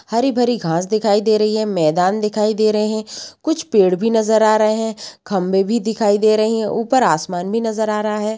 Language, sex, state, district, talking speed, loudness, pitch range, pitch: Hindi, female, Bihar, Sitamarhi, 220 wpm, -17 LUFS, 205-225 Hz, 215 Hz